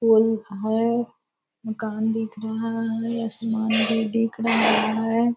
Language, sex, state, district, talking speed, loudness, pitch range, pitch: Hindi, female, Bihar, Purnia, 125 wpm, -22 LUFS, 220-230 Hz, 225 Hz